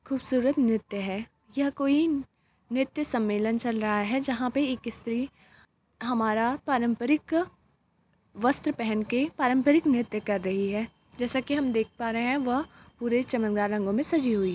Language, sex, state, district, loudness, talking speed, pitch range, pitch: Hindi, female, Uttar Pradesh, Varanasi, -27 LUFS, 160 wpm, 220-275 Hz, 245 Hz